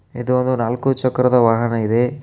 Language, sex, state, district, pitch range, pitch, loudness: Kannada, male, Karnataka, Koppal, 115-130 Hz, 125 Hz, -17 LUFS